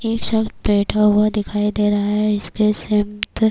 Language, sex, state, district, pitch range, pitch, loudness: Urdu, female, Bihar, Kishanganj, 210-215 Hz, 210 Hz, -18 LUFS